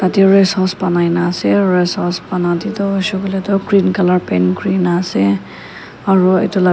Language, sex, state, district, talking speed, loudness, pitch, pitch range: Nagamese, female, Nagaland, Kohima, 195 wpm, -14 LUFS, 185 Hz, 175-195 Hz